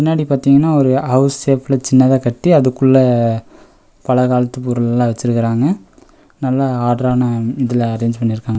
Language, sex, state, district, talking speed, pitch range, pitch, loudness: Tamil, male, Tamil Nadu, Nilgiris, 135 wpm, 120-135 Hz, 130 Hz, -14 LUFS